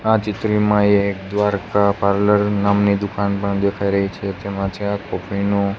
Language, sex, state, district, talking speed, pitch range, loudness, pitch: Gujarati, male, Gujarat, Gandhinagar, 155 wpm, 100-105 Hz, -19 LUFS, 100 Hz